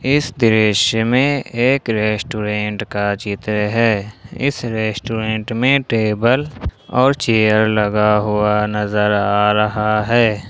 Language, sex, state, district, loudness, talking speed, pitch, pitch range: Hindi, male, Jharkhand, Ranchi, -17 LUFS, 115 wpm, 110 Hz, 105-120 Hz